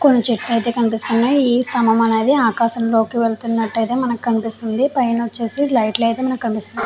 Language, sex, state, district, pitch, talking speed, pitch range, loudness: Telugu, female, Andhra Pradesh, Chittoor, 230 Hz, 165 wpm, 225-245 Hz, -17 LUFS